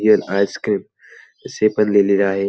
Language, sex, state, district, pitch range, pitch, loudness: Marathi, male, Maharashtra, Pune, 100-105 Hz, 100 Hz, -17 LUFS